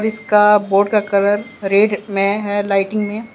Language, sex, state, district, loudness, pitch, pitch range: Hindi, male, Jharkhand, Deoghar, -16 LUFS, 205 Hz, 200-210 Hz